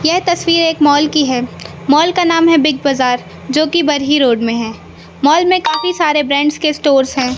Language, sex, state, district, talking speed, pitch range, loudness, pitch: Hindi, male, Madhya Pradesh, Katni, 210 wpm, 270-330 Hz, -13 LUFS, 300 Hz